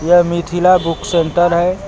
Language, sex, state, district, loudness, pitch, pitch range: Hindi, male, Uttar Pradesh, Lucknow, -14 LUFS, 175 Hz, 170-180 Hz